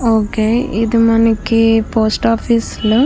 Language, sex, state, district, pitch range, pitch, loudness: Telugu, female, Andhra Pradesh, Krishna, 220-230 Hz, 225 Hz, -14 LUFS